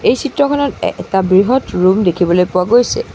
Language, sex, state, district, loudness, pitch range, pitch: Assamese, female, Assam, Sonitpur, -13 LUFS, 185-270 Hz, 200 Hz